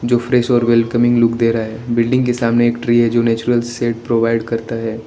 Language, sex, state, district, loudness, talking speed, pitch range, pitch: Hindi, male, Arunachal Pradesh, Lower Dibang Valley, -15 LUFS, 225 wpm, 115-120 Hz, 120 Hz